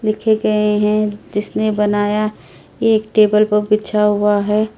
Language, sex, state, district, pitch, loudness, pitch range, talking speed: Hindi, female, Delhi, New Delhi, 210 Hz, -16 LUFS, 210-215 Hz, 140 wpm